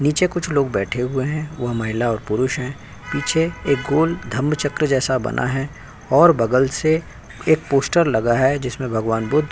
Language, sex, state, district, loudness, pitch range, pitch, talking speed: Hindi, male, Uttar Pradesh, Jyotiba Phule Nagar, -19 LUFS, 125-150 Hz, 135 Hz, 190 wpm